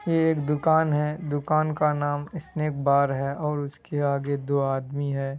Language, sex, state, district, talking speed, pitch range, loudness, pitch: Hindi, male, Bihar, Kishanganj, 165 wpm, 140-155 Hz, -25 LUFS, 145 Hz